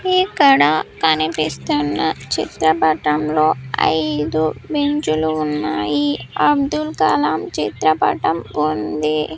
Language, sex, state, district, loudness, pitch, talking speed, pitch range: Telugu, female, Andhra Pradesh, Sri Satya Sai, -18 LUFS, 155 Hz, 70 wpm, 150-155 Hz